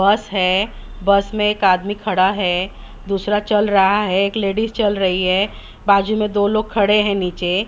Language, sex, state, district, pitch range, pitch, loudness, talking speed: Hindi, female, Maharashtra, Mumbai Suburban, 190-210 Hz, 200 Hz, -17 LUFS, 190 wpm